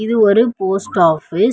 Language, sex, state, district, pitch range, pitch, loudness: Tamil, female, Tamil Nadu, Chennai, 190-225 Hz, 205 Hz, -15 LUFS